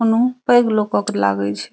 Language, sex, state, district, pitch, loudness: Maithili, female, Bihar, Saharsa, 215 Hz, -17 LUFS